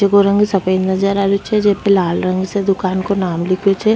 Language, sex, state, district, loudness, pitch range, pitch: Rajasthani, female, Rajasthan, Nagaur, -15 LUFS, 185-200 Hz, 195 Hz